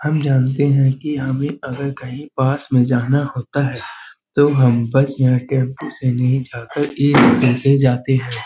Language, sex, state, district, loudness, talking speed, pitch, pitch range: Hindi, male, Uttar Pradesh, Budaun, -17 LUFS, 170 wpm, 135 Hz, 125-140 Hz